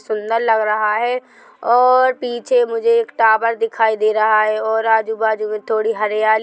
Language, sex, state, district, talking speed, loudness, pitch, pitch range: Hindi, female, Chhattisgarh, Bilaspur, 170 wpm, -16 LUFS, 225 Hz, 215-245 Hz